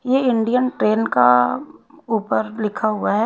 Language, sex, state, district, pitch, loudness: Hindi, female, Haryana, Rohtak, 225 Hz, -18 LUFS